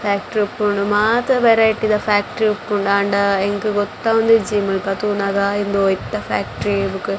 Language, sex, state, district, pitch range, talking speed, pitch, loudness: Tulu, female, Karnataka, Dakshina Kannada, 200-215 Hz, 135 wpm, 205 Hz, -17 LUFS